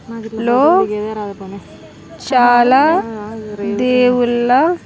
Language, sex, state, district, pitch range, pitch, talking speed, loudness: Telugu, female, Andhra Pradesh, Sri Satya Sai, 210-250 Hz, 240 Hz, 50 wpm, -14 LUFS